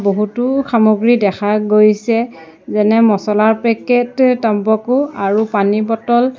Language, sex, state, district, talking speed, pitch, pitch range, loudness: Assamese, female, Assam, Sonitpur, 110 wpm, 220 Hz, 210-240 Hz, -14 LUFS